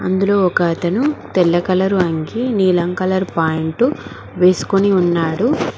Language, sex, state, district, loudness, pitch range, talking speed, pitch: Telugu, female, Telangana, Mahabubabad, -16 LUFS, 175-195 Hz, 115 wpm, 185 Hz